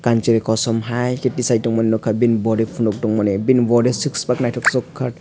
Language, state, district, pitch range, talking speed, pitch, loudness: Kokborok, Tripura, West Tripura, 110-125 Hz, 175 wpm, 120 Hz, -18 LUFS